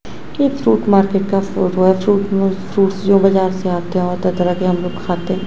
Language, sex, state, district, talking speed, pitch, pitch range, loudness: Hindi, female, Gujarat, Gandhinagar, 250 wpm, 190 Hz, 185-195 Hz, -16 LUFS